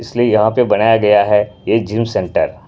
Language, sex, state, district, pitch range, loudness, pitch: Hindi, male, Punjab, Pathankot, 105-115 Hz, -14 LUFS, 110 Hz